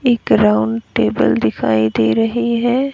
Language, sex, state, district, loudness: Hindi, female, Haryana, Rohtak, -15 LUFS